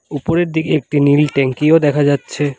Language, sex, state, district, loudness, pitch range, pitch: Bengali, male, West Bengal, Alipurduar, -14 LUFS, 145-155 Hz, 145 Hz